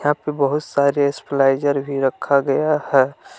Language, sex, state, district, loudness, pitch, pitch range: Hindi, male, Jharkhand, Palamu, -19 LUFS, 140 Hz, 135-145 Hz